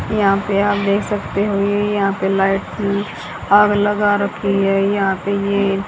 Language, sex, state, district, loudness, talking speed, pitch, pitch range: Hindi, female, Haryana, Jhajjar, -17 LUFS, 185 wpm, 200 Hz, 195-205 Hz